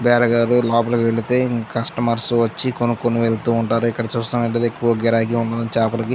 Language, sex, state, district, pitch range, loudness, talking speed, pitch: Telugu, male, Andhra Pradesh, Chittoor, 115-120 Hz, -19 LUFS, 145 wpm, 115 Hz